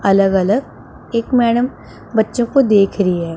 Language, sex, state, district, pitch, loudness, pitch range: Hindi, female, Punjab, Pathankot, 215 Hz, -16 LUFS, 195-240 Hz